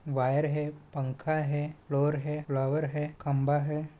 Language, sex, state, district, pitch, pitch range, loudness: Hindi, male, Chhattisgarh, Balrampur, 150 Hz, 140-150 Hz, -30 LUFS